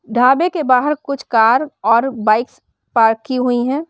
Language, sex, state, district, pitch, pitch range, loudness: Hindi, female, Uttar Pradesh, Shamli, 250 Hz, 230-280 Hz, -15 LUFS